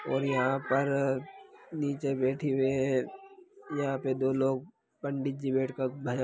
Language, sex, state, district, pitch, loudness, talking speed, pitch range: Hindi, male, Bihar, Lakhisarai, 135 Hz, -31 LUFS, 155 wpm, 130-145 Hz